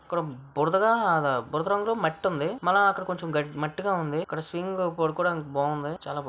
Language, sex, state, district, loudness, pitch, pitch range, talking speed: Telugu, female, Andhra Pradesh, Visakhapatnam, -27 LUFS, 160 Hz, 150-190 Hz, 180 wpm